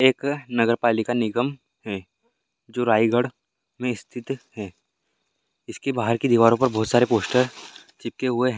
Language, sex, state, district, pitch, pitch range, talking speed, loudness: Hindi, male, Chhattisgarh, Raigarh, 120 Hz, 115-130 Hz, 140 wpm, -23 LUFS